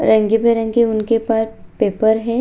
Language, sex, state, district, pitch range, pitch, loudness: Hindi, female, Bihar, Bhagalpur, 220-230 Hz, 225 Hz, -16 LUFS